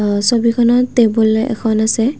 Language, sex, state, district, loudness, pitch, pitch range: Assamese, female, Assam, Kamrup Metropolitan, -14 LUFS, 230 Hz, 220-240 Hz